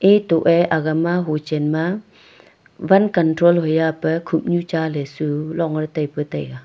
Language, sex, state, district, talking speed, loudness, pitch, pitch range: Wancho, female, Arunachal Pradesh, Longding, 155 wpm, -19 LUFS, 160 Hz, 155-175 Hz